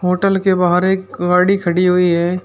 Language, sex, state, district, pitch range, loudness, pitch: Hindi, male, Uttar Pradesh, Shamli, 180-190 Hz, -15 LUFS, 180 Hz